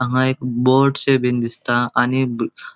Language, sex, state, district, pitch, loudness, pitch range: Konkani, male, Goa, North and South Goa, 125 Hz, -18 LUFS, 120-130 Hz